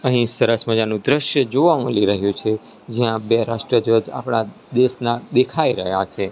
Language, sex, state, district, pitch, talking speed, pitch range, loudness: Gujarati, male, Gujarat, Gandhinagar, 115 Hz, 160 wpm, 110-130 Hz, -19 LUFS